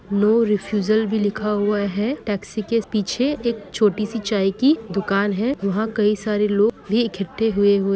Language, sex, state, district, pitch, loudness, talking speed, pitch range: Hindi, female, West Bengal, Kolkata, 210 Hz, -21 LUFS, 180 wpm, 200-225 Hz